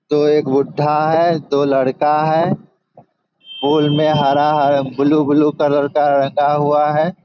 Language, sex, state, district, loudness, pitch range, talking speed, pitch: Hindi, male, Bihar, Begusarai, -15 LUFS, 140-150 Hz, 140 wpm, 150 Hz